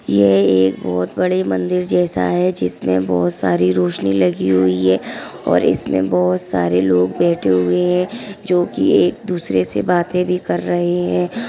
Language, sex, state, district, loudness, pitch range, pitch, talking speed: Hindi, female, Maharashtra, Aurangabad, -16 LUFS, 90-100 Hz, 95 Hz, 165 wpm